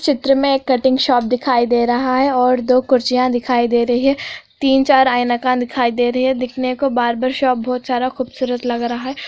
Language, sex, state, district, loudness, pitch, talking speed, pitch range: Hindi, female, Andhra Pradesh, Anantapur, -16 LUFS, 255 Hz, 220 wpm, 245-260 Hz